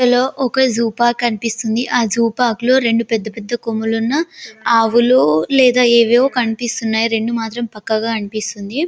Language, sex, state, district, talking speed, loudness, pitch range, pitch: Telugu, female, Telangana, Karimnagar, 140 wpm, -16 LUFS, 225-245 Hz, 235 Hz